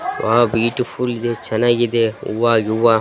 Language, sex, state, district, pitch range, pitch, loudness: Kannada, male, Karnataka, Raichur, 115-120 Hz, 115 Hz, -17 LUFS